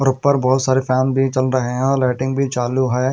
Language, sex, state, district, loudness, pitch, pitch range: Hindi, male, Punjab, Fazilka, -18 LUFS, 130 Hz, 130-135 Hz